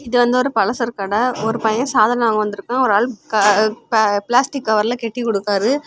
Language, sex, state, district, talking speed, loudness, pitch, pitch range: Tamil, female, Tamil Nadu, Kanyakumari, 175 wpm, -17 LUFS, 225 Hz, 215-245 Hz